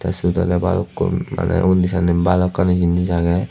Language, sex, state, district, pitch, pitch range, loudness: Chakma, male, Tripura, Unakoti, 90 Hz, 85-90 Hz, -18 LUFS